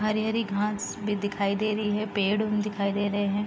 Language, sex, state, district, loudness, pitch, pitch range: Hindi, female, Bihar, Gopalganj, -27 LUFS, 210 Hz, 200-215 Hz